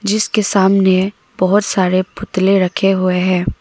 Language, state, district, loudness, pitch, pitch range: Hindi, Arunachal Pradesh, Papum Pare, -15 LUFS, 195 Hz, 185-205 Hz